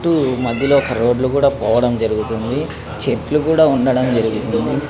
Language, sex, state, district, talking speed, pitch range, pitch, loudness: Telugu, male, Andhra Pradesh, Krishna, 135 wpm, 115-140 Hz, 130 Hz, -17 LUFS